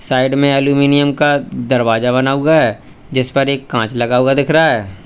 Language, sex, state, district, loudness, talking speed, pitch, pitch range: Hindi, male, Uttar Pradesh, Lalitpur, -14 LUFS, 200 wpm, 135 Hz, 125-140 Hz